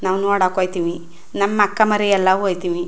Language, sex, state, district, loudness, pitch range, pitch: Kannada, female, Karnataka, Chamarajanagar, -18 LUFS, 175-200 Hz, 190 Hz